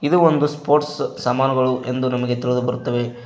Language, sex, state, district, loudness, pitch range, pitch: Kannada, male, Karnataka, Koppal, -20 LUFS, 125-150 Hz, 130 Hz